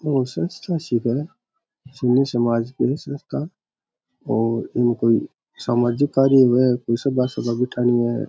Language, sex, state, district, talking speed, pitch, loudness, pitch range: Rajasthani, male, Rajasthan, Churu, 150 wpm, 125 Hz, -20 LUFS, 120-140 Hz